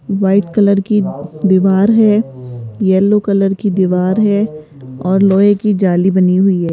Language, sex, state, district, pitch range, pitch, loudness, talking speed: Hindi, female, Rajasthan, Jaipur, 180-205 Hz, 195 Hz, -13 LUFS, 150 wpm